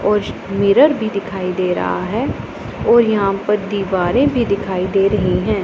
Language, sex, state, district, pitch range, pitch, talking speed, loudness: Hindi, female, Punjab, Pathankot, 190-210 Hz, 200 Hz, 170 wpm, -17 LUFS